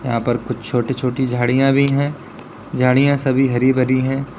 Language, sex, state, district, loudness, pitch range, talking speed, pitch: Hindi, male, Uttar Pradesh, Lalitpur, -17 LUFS, 125-135 Hz, 175 wpm, 130 Hz